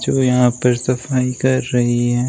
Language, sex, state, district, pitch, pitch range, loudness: Hindi, male, Uttar Pradesh, Shamli, 125 Hz, 120-130 Hz, -17 LUFS